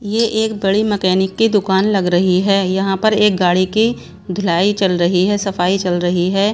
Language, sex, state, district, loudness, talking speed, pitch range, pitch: Hindi, female, Bihar, Patna, -15 LUFS, 200 wpm, 185-210 Hz, 195 Hz